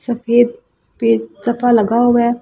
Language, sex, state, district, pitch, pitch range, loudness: Hindi, female, Delhi, New Delhi, 235 Hz, 225-240 Hz, -15 LUFS